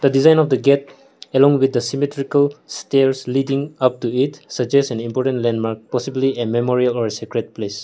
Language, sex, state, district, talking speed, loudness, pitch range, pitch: English, male, Nagaland, Kohima, 190 wpm, -18 LUFS, 120-140 Hz, 130 Hz